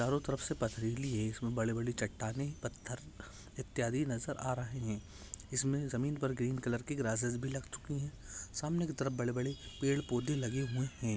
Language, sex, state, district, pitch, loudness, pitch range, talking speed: Hindi, male, Maharashtra, Aurangabad, 125 Hz, -37 LUFS, 115-135 Hz, 195 wpm